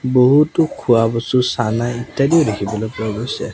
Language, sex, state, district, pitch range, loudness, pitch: Assamese, male, Assam, Sonitpur, 110-135 Hz, -17 LUFS, 120 Hz